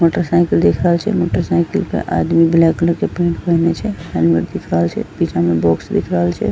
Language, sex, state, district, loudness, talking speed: Angika, female, Bihar, Bhagalpur, -16 LUFS, 230 wpm